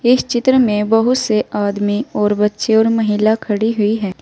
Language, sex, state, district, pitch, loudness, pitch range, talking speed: Hindi, female, Uttar Pradesh, Saharanpur, 215 Hz, -15 LUFS, 210-230 Hz, 185 wpm